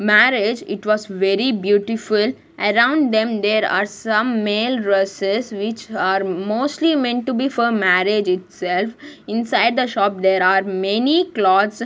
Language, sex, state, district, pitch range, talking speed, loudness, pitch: English, female, Punjab, Kapurthala, 195-235 Hz, 140 wpm, -18 LUFS, 215 Hz